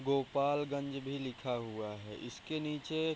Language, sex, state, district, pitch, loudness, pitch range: Hindi, male, Bihar, Bhagalpur, 140 Hz, -38 LUFS, 125-145 Hz